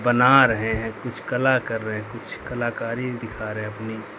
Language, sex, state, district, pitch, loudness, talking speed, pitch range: Hindi, male, Uttar Pradesh, Lucknow, 115 Hz, -23 LUFS, 170 wpm, 110-125 Hz